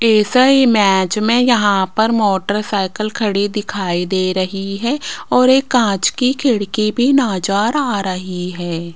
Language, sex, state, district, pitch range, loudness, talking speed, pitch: Hindi, female, Rajasthan, Jaipur, 190-240 Hz, -15 LUFS, 140 wpm, 210 Hz